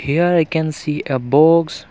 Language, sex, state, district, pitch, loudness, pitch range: English, male, Arunachal Pradesh, Longding, 155 Hz, -16 LUFS, 145-165 Hz